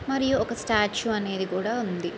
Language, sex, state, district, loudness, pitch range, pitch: Telugu, female, Andhra Pradesh, Srikakulam, -26 LUFS, 190-240 Hz, 215 Hz